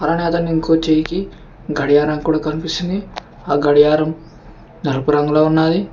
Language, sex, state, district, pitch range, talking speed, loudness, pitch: Telugu, male, Telangana, Mahabubabad, 150-165 Hz, 100 wpm, -16 LUFS, 155 Hz